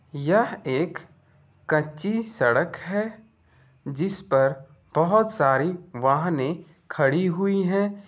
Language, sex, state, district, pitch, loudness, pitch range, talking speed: Hindi, male, Bihar, Gopalganj, 170 Hz, -24 LUFS, 140-195 Hz, 95 wpm